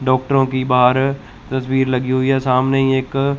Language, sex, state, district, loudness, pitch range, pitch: Hindi, male, Chandigarh, Chandigarh, -17 LUFS, 130-135 Hz, 130 Hz